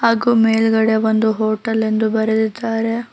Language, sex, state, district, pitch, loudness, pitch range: Kannada, female, Karnataka, Bangalore, 220 Hz, -17 LUFS, 220-225 Hz